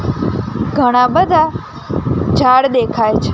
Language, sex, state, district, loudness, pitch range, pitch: Gujarati, female, Gujarat, Gandhinagar, -14 LUFS, 250-315 Hz, 260 Hz